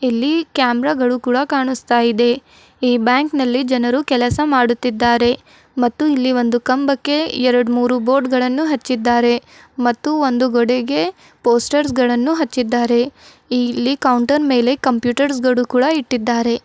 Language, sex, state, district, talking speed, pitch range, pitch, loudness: Kannada, female, Karnataka, Bidar, 120 wpm, 245-275 Hz, 250 Hz, -16 LUFS